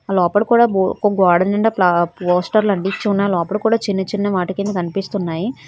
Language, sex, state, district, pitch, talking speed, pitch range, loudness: Telugu, female, Telangana, Hyderabad, 195 Hz, 170 wpm, 180-210 Hz, -17 LUFS